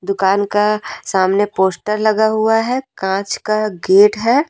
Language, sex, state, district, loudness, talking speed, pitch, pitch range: Hindi, female, Jharkhand, Deoghar, -16 LUFS, 145 wpm, 210 Hz, 195-220 Hz